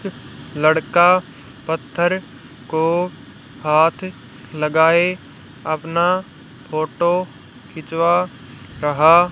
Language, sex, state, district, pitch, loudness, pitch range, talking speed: Hindi, female, Haryana, Rohtak, 160 Hz, -18 LUFS, 140-175 Hz, 60 wpm